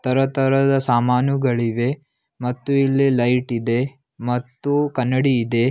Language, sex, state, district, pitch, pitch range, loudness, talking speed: Kannada, male, Karnataka, Belgaum, 130 Hz, 125-135 Hz, -20 LUFS, 95 wpm